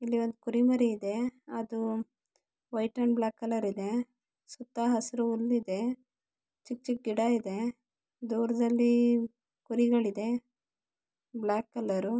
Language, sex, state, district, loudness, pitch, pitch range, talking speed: Kannada, female, Karnataka, Gulbarga, -31 LUFS, 235 Hz, 225-240 Hz, 110 wpm